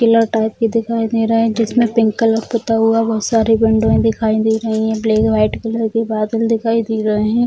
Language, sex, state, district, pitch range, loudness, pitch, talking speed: Hindi, female, Bihar, Bhagalpur, 220-230 Hz, -15 LUFS, 225 Hz, 250 wpm